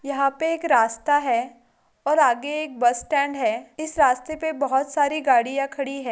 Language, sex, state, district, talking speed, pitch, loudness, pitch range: Hindi, female, Goa, North and South Goa, 175 wpm, 280 Hz, -22 LUFS, 255-315 Hz